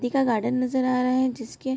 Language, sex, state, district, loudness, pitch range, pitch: Hindi, female, Bihar, Vaishali, -24 LUFS, 245-260 Hz, 255 Hz